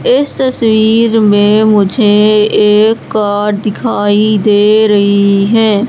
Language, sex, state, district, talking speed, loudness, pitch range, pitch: Hindi, female, Madhya Pradesh, Katni, 100 wpm, -9 LUFS, 205-220 Hz, 210 Hz